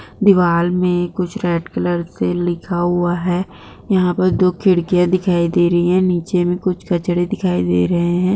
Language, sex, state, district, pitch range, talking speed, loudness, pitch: Hindi, female, Maharashtra, Chandrapur, 175-185 Hz, 180 wpm, -17 LUFS, 175 Hz